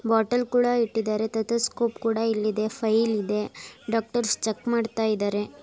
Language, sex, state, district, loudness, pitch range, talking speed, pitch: Kannada, female, Karnataka, Dakshina Kannada, -25 LUFS, 215-235 Hz, 140 wpm, 225 Hz